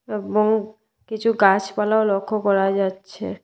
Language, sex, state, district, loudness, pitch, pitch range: Bengali, female, Tripura, West Tripura, -20 LUFS, 210 Hz, 195-215 Hz